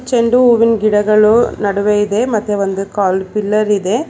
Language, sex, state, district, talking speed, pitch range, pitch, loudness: Kannada, female, Karnataka, Bangalore, 145 wpm, 205-230 Hz, 210 Hz, -13 LUFS